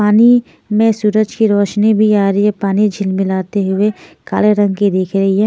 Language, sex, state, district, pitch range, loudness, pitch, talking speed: Hindi, female, Punjab, Fazilka, 195-215 Hz, -13 LUFS, 205 Hz, 210 wpm